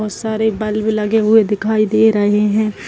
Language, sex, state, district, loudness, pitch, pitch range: Hindi, female, Bihar, Muzaffarpur, -15 LUFS, 215 Hz, 210-220 Hz